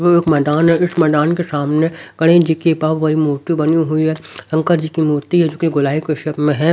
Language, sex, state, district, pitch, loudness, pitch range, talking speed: Hindi, male, Haryana, Rohtak, 160 Hz, -15 LUFS, 150-165 Hz, 260 wpm